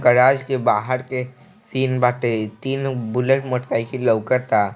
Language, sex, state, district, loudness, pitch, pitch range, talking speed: Bhojpuri, male, Bihar, East Champaran, -20 LUFS, 125 Hz, 120-130 Hz, 140 wpm